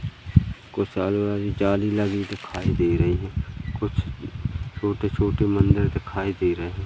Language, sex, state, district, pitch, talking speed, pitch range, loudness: Hindi, male, Madhya Pradesh, Katni, 100 Hz, 140 wpm, 95-105 Hz, -24 LUFS